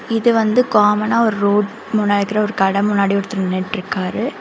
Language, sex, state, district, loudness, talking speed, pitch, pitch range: Tamil, female, Karnataka, Bangalore, -17 LUFS, 165 wpm, 210 Hz, 195-220 Hz